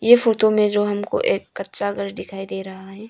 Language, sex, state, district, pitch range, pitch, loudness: Hindi, female, Arunachal Pradesh, Longding, 195-220 Hz, 205 Hz, -21 LUFS